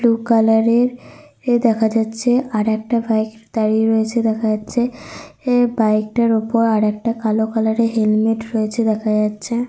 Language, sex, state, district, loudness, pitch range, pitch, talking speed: Bengali, female, Jharkhand, Sahebganj, -17 LUFS, 220-235 Hz, 225 Hz, 140 wpm